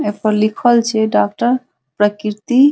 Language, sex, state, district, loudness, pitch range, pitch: Maithili, female, Bihar, Saharsa, -16 LUFS, 210-240 Hz, 215 Hz